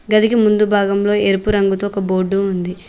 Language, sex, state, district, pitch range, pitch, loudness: Telugu, female, Telangana, Mahabubabad, 195-210 Hz, 200 Hz, -16 LUFS